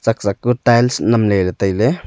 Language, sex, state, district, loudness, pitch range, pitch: Wancho, male, Arunachal Pradesh, Longding, -15 LUFS, 100-120 Hz, 115 Hz